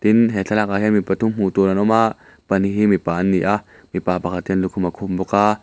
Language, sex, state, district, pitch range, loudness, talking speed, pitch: Mizo, male, Mizoram, Aizawl, 95-105 Hz, -19 LUFS, 255 wpm, 100 Hz